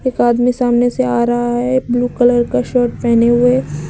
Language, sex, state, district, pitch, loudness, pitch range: Hindi, female, Uttar Pradesh, Lucknow, 240 Hz, -14 LUFS, 235-245 Hz